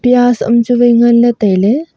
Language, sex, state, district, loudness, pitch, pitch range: Wancho, female, Arunachal Pradesh, Longding, -10 LUFS, 240 Hz, 235-245 Hz